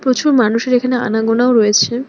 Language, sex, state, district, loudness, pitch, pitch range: Bengali, female, West Bengal, Alipurduar, -13 LUFS, 245 Hz, 225-255 Hz